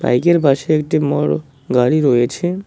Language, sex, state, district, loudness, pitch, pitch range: Bengali, male, West Bengal, Cooch Behar, -16 LUFS, 145 Hz, 125-165 Hz